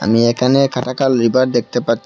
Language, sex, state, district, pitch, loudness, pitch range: Bengali, male, Assam, Hailakandi, 125 Hz, -15 LUFS, 115-130 Hz